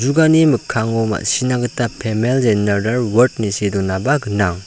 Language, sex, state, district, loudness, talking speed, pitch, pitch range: Garo, male, Meghalaya, South Garo Hills, -16 LUFS, 130 wpm, 115 Hz, 105-125 Hz